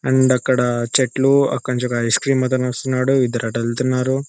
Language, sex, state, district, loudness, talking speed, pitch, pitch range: Telugu, male, Telangana, Nalgonda, -18 LUFS, 180 wpm, 130 Hz, 125-130 Hz